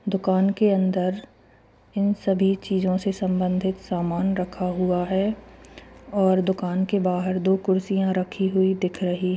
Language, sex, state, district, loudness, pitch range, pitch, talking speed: Hindi, female, Chhattisgarh, Kabirdham, -23 LUFS, 185-195 Hz, 190 Hz, 140 wpm